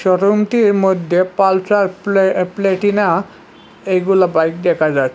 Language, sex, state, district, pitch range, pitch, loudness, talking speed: Bengali, male, Assam, Hailakandi, 180-200 Hz, 190 Hz, -15 LUFS, 105 wpm